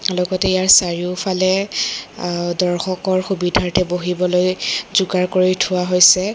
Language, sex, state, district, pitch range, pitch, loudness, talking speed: Assamese, female, Assam, Kamrup Metropolitan, 180-185 Hz, 185 Hz, -17 LUFS, 105 wpm